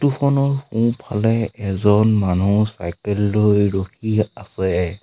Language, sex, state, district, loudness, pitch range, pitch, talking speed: Assamese, male, Assam, Sonitpur, -19 LUFS, 100-115 Hz, 105 Hz, 105 wpm